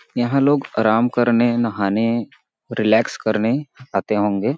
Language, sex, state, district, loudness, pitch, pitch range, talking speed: Hindi, male, Chhattisgarh, Balrampur, -19 LUFS, 115 Hz, 110-120 Hz, 130 wpm